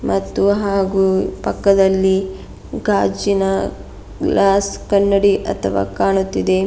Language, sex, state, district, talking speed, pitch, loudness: Kannada, female, Karnataka, Bidar, 70 wpm, 190 Hz, -17 LUFS